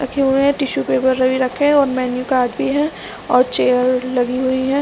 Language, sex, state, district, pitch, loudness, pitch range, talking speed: Hindi, female, Chhattisgarh, Raigarh, 260 Hz, -17 LUFS, 250-275 Hz, 235 wpm